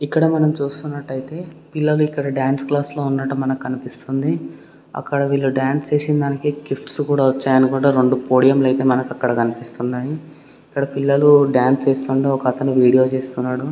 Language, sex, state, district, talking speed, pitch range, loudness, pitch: Telugu, male, Karnataka, Gulbarga, 145 wpm, 130-145 Hz, -18 LUFS, 135 Hz